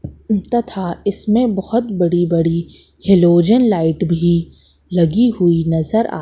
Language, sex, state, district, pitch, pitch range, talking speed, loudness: Hindi, female, Madhya Pradesh, Katni, 185 Hz, 170-225 Hz, 115 wpm, -16 LUFS